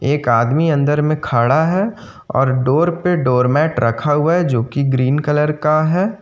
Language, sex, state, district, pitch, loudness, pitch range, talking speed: Hindi, male, Jharkhand, Ranchi, 150 Hz, -16 LUFS, 130-160 Hz, 190 wpm